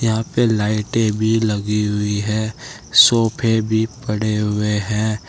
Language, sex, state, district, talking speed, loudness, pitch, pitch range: Hindi, male, Uttar Pradesh, Saharanpur, 135 wpm, -18 LUFS, 110 Hz, 105-115 Hz